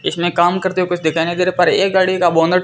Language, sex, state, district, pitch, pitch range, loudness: Hindi, female, Rajasthan, Bikaner, 175 Hz, 170-185 Hz, -15 LUFS